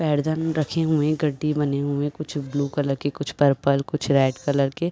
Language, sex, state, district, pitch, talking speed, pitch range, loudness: Hindi, female, Bihar, Sitamarhi, 145 Hz, 205 wpm, 140-155 Hz, -23 LUFS